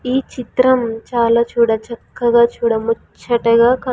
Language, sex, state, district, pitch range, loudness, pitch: Telugu, female, Andhra Pradesh, Sri Satya Sai, 230-250 Hz, -16 LUFS, 235 Hz